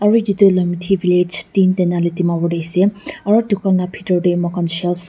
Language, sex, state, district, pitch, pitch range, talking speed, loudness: Nagamese, female, Nagaland, Dimapur, 180 Hz, 175-195 Hz, 225 wpm, -16 LUFS